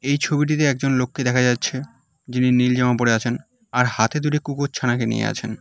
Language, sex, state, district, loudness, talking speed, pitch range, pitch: Bengali, male, West Bengal, Cooch Behar, -20 LUFS, 195 wpm, 125-145 Hz, 130 Hz